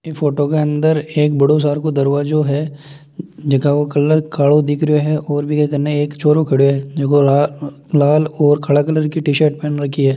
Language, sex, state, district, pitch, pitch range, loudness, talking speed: Marwari, male, Rajasthan, Nagaur, 145 Hz, 145-150 Hz, -15 LUFS, 205 wpm